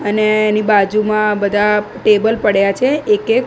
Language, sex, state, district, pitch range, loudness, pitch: Gujarati, female, Gujarat, Gandhinagar, 205-215 Hz, -14 LUFS, 210 Hz